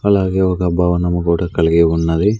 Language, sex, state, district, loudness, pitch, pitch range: Telugu, male, Andhra Pradesh, Sri Satya Sai, -15 LUFS, 90 Hz, 85-95 Hz